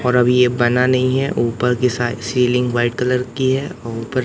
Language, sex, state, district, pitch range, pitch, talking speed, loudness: Hindi, male, Madhya Pradesh, Katni, 120-130 Hz, 125 Hz, 240 wpm, -17 LUFS